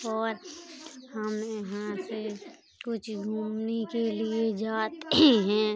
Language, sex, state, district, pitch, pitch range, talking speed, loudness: Bundeli, female, Uttar Pradesh, Jalaun, 220 Hz, 215-230 Hz, 105 wpm, -29 LUFS